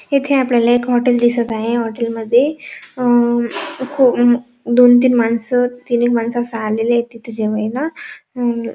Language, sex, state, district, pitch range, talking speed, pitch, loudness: Marathi, female, Maharashtra, Dhule, 235-250 Hz, 125 wpm, 240 Hz, -16 LUFS